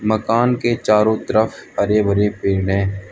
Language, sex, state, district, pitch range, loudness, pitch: Hindi, male, Arunachal Pradesh, Lower Dibang Valley, 100-110 Hz, -17 LUFS, 105 Hz